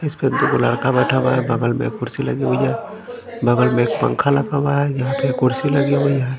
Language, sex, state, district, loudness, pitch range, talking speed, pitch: Hindi, male, Haryana, Charkhi Dadri, -18 LUFS, 130-145 Hz, 245 wpm, 140 Hz